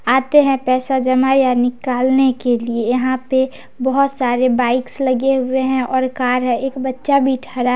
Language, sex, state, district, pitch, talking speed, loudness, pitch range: Maithili, female, Bihar, Samastipur, 260 Hz, 180 wpm, -16 LUFS, 250-265 Hz